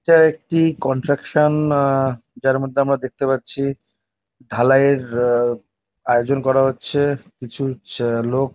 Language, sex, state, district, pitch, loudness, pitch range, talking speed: Bengali, male, West Bengal, North 24 Parganas, 135 Hz, -18 LUFS, 120-140 Hz, 140 wpm